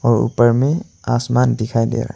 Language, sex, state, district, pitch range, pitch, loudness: Hindi, male, Arunachal Pradesh, Longding, 115-125 Hz, 120 Hz, -17 LUFS